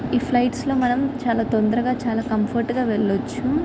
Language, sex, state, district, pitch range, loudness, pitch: Telugu, female, Andhra Pradesh, Visakhapatnam, 225-255 Hz, -21 LUFS, 245 Hz